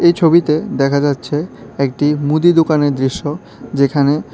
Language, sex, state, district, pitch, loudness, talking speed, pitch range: Bengali, male, Tripura, West Tripura, 145 Hz, -15 LUFS, 110 wpm, 140-160 Hz